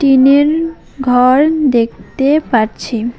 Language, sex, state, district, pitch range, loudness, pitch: Bengali, female, West Bengal, Alipurduar, 235-290 Hz, -12 LUFS, 265 Hz